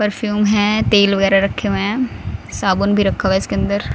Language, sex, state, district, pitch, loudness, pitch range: Hindi, female, Haryana, Rohtak, 200 Hz, -16 LUFS, 195-210 Hz